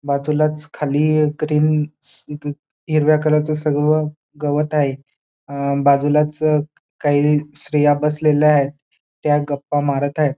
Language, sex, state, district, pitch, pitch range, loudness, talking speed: Marathi, male, Maharashtra, Dhule, 150 Hz, 145-150 Hz, -18 LUFS, 100 wpm